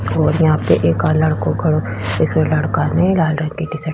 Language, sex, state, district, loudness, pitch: Rajasthani, female, Rajasthan, Churu, -16 LUFS, 155 Hz